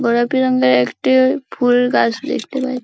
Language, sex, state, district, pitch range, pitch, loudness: Bengali, female, West Bengal, Paschim Medinipur, 235-260 Hz, 250 Hz, -16 LUFS